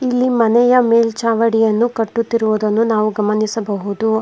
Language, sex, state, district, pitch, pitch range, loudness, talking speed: Kannada, female, Karnataka, Bangalore, 225 Hz, 215-230 Hz, -15 LUFS, 85 wpm